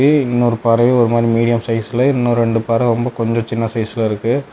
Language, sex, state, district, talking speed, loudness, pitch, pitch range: Tamil, male, Tamil Nadu, Namakkal, 170 wpm, -16 LUFS, 115 Hz, 115-120 Hz